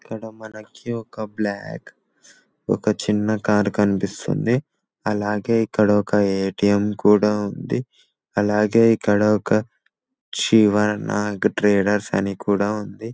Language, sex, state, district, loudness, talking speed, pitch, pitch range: Telugu, male, Telangana, Nalgonda, -20 LUFS, 110 wpm, 105 Hz, 105-110 Hz